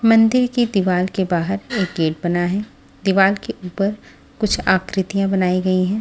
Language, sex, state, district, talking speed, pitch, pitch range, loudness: Hindi, female, Maharashtra, Washim, 170 wpm, 190 Hz, 185-210 Hz, -19 LUFS